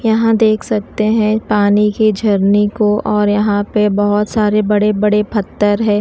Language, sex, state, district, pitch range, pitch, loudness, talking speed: Hindi, female, Odisha, Nuapada, 205-215 Hz, 210 Hz, -14 LUFS, 170 wpm